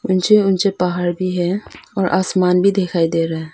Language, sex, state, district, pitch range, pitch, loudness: Hindi, female, Arunachal Pradesh, Papum Pare, 175-195 Hz, 185 Hz, -17 LUFS